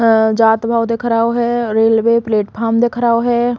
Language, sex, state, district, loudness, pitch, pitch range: Bundeli, female, Uttar Pradesh, Hamirpur, -14 LUFS, 230 Hz, 225-235 Hz